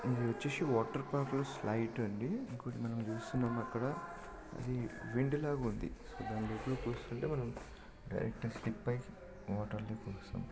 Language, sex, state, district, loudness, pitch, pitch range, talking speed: Telugu, male, Telangana, Nalgonda, -39 LUFS, 120 Hz, 110-130 Hz, 110 wpm